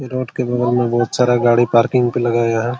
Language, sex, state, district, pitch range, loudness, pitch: Hindi, male, Jharkhand, Jamtara, 120-125 Hz, -16 LUFS, 120 Hz